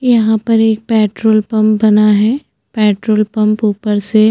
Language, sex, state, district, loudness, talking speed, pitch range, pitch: Hindi, female, Chhattisgarh, Bastar, -12 LUFS, 155 wpm, 215-220 Hz, 215 Hz